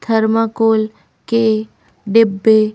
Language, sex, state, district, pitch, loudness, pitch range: Hindi, female, Madhya Pradesh, Bhopal, 220 Hz, -15 LUFS, 215-225 Hz